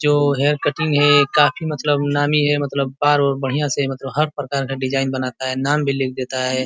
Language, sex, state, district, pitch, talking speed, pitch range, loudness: Hindi, male, Uttar Pradesh, Ghazipur, 145 Hz, 235 wpm, 135-145 Hz, -18 LUFS